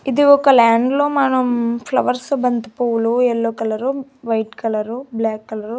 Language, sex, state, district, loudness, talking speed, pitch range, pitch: Telugu, female, Andhra Pradesh, Annamaya, -17 LUFS, 145 wpm, 225-265 Hz, 240 Hz